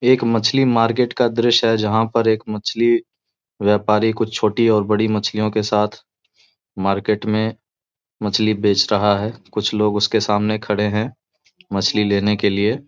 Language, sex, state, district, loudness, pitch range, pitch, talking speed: Hindi, male, Bihar, Samastipur, -18 LUFS, 105-115 Hz, 110 Hz, 165 wpm